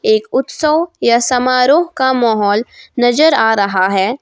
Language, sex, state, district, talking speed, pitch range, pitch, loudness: Hindi, female, Jharkhand, Ranchi, 140 wpm, 225-305 Hz, 250 Hz, -13 LUFS